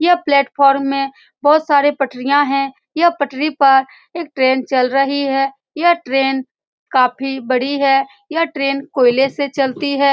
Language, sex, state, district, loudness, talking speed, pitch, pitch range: Hindi, female, Bihar, Saran, -16 LUFS, 155 wpm, 275 Hz, 270-290 Hz